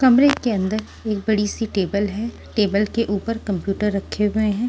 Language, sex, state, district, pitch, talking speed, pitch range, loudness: Hindi, female, Punjab, Pathankot, 210 Hz, 190 wpm, 200-225 Hz, -21 LUFS